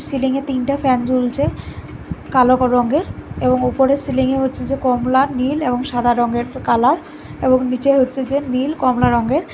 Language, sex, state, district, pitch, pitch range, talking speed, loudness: Bengali, female, Karnataka, Bangalore, 260 Hz, 255-270 Hz, 155 wpm, -17 LUFS